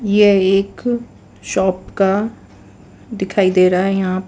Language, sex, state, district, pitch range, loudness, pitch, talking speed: Hindi, female, Gujarat, Valsad, 190-205 Hz, -16 LUFS, 195 Hz, 155 wpm